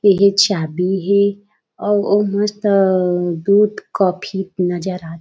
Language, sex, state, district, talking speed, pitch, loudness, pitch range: Chhattisgarhi, female, Chhattisgarh, Raigarh, 115 wpm, 195 Hz, -17 LUFS, 180-205 Hz